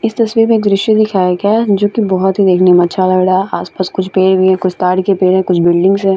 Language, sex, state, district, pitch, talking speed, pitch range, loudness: Hindi, female, Bihar, Vaishali, 190 Hz, 290 wpm, 185-200 Hz, -12 LUFS